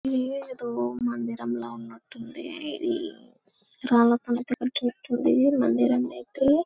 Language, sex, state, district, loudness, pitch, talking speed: Telugu, male, Telangana, Karimnagar, -26 LUFS, 245 Hz, 100 wpm